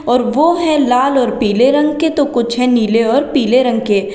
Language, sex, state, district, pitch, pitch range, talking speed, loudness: Hindi, female, Uttar Pradesh, Lalitpur, 250 Hz, 235-290 Hz, 230 wpm, -13 LUFS